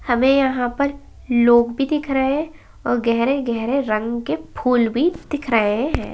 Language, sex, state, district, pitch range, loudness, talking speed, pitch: Kumaoni, male, Uttarakhand, Uttarkashi, 235-280 Hz, -19 LUFS, 165 wpm, 255 Hz